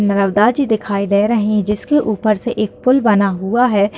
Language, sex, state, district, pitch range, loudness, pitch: Hindi, female, Bihar, Jamui, 200-230 Hz, -15 LUFS, 215 Hz